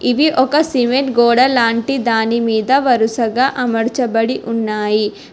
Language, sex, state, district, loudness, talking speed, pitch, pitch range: Telugu, female, Telangana, Hyderabad, -15 LUFS, 100 wpm, 240 Hz, 225-260 Hz